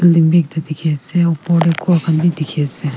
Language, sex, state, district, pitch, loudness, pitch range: Nagamese, female, Nagaland, Kohima, 165 Hz, -15 LUFS, 155-170 Hz